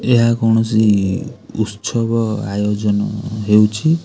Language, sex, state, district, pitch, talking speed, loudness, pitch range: Odia, male, Odisha, Khordha, 110 Hz, 75 wpm, -16 LUFS, 105-115 Hz